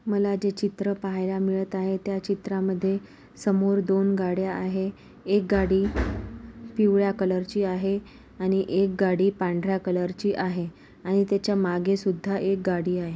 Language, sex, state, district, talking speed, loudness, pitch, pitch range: Marathi, female, Maharashtra, Pune, 130 wpm, -26 LUFS, 195 Hz, 185-200 Hz